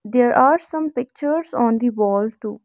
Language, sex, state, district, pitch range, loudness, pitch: English, female, Haryana, Rohtak, 215-300 Hz, -19 LUFS, 245 Hz